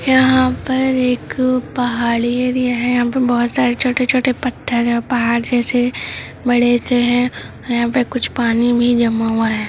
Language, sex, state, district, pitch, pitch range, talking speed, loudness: Hindi, male, Bihar, Gopalganj, 245 Hz, 240-255 Hz, 160 wpm, -16 LUFS